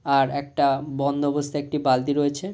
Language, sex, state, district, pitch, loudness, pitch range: Bengali, male, West Bengal, North 24 Parganas, 145 Hz, -23 LUFS, 140-145 Hz